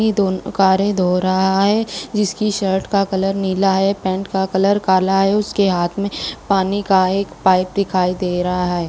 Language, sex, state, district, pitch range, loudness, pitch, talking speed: Hindi, female, Rajasthan, Bikaner, 185-200 Hz, -17 LUFS, 190 Hz, 180 wpm